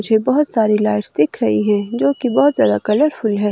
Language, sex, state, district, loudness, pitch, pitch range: Hindi, female, Himachal Pradesh, Shimla, -16 LUFS, 215 Hz, 210-260 Hz